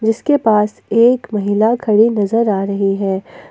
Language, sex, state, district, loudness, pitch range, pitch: Hindi, female, Jharkhand, Ranchi, -15 LUFS, 200-230 Hz, 215 Hz